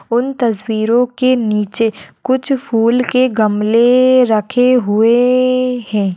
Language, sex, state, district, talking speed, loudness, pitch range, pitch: Hindi, female, Maharashtra, Solapur, 105 wpm, -13 LUFS, 220-255 Hz, 240 Hz